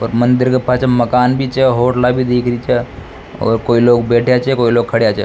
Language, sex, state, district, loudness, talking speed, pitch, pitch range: Rajasthani, male, Rajasthan, Nagaur, -13 LUFS, 240 wpm, 125 Hz, 120-125 Hz